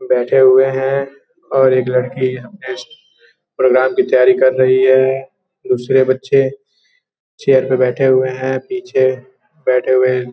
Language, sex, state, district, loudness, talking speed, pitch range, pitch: Hindi, male, Bihar, Gopalganj, -14 LUFS, 140 wpm, 130-135 Hz, 130 Hz